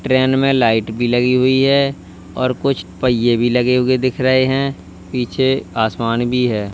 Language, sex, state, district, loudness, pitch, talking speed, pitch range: Hindi, male, Uttar Pradesh, Lalitpur, -16 LUFS, 125 Hz, 180 wpm, 115-130 Hz